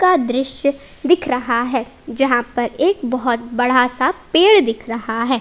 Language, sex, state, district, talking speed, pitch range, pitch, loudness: Hindi, female, Jharkhand, Palamu, 165 wpm, 240-280 Hz, 255 Hz, -17 LUFS